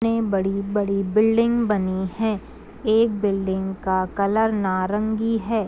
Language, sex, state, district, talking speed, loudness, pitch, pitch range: Hindi, female, Uttar Pradesh, Gorakhpur, 115 wpm, -22 LUFS, 210 Hz, 195-220 Hz